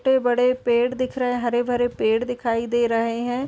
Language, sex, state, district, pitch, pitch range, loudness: Hindi, female, Uttar Pradesh, Deoria, 245 Hz, 235-250 Hz, -22 LUFS